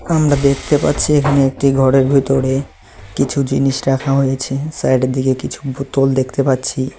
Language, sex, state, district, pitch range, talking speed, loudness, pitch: Bengali, male, West Bengal, Cooch Behar, 130-140 Hz, 145 wpm, -15 LUFS, 135 Hz